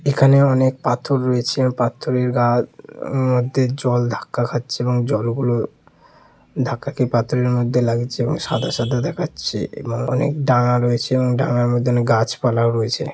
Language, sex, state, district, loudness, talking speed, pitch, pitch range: Bengali, male, West Bengal, Purulia, -19 LUFS, 135 wpm, 125 Hz, 120-130 Hz